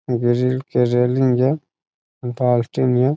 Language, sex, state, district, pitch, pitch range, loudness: Maithili, male, Bihar, Saharsa, 125 Hz, 120-130 Hz, -19 LUFS